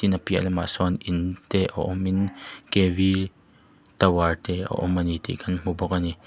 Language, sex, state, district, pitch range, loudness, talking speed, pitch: Mizo, male, Mizoram, Aizawl, 90-95 Hz, -25 LUFS, 210 wpm, 90 Hz